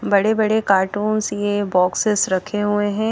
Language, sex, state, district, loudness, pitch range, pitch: Hindi, female, Haryana, Charkhi Dadri, -19 LUFS, 195-215 Hz, 205 Hz